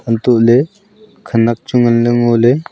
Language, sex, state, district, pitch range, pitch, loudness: Wancho, male, Arunachal Pradesh, Longding, 115-155 Hz, 120 Hz, -12 LUFS